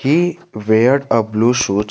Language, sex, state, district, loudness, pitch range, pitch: English, male, Jharkhand, Garhwa, -15 LUFS, 110-140 Hz, 115 Hz